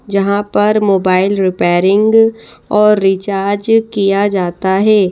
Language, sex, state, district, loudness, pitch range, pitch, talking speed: Hindi, female, Madhya Pradesh, Bhopal, -12 LUFS, 190-210 Hz, 200 Hz, 105 wpm